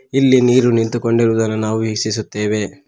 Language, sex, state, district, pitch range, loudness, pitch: Kannada, male, Karnataka, Koppal, 110-125 Hz, -16 LUFS, 115 Hz